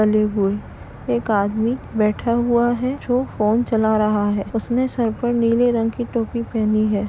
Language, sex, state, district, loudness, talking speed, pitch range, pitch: Hindi, female, Uttar Pradesh, Jalaun, -20 LUFS, 170 wpm, 210-240 Hz, 225 Hz